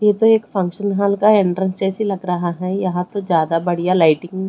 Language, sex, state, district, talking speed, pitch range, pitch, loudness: Hindi, female, Odisha, Khordha, 225 wpm, 180-200 Hz, 190 Hz, -17 LUFS